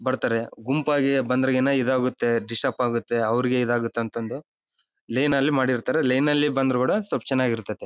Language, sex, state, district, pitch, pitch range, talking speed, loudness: Kannada, male, Karnataka, Bellary, 125 Hz, 115-135 Hz, 160 wpm, -23 LUFS